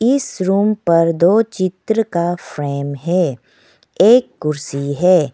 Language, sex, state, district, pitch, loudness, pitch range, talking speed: Hindi, female, Arunachal Pradesh, Lower Dibang Valley, 175 Hz, -16 LUFS, 150-205 Hz, 125 wpm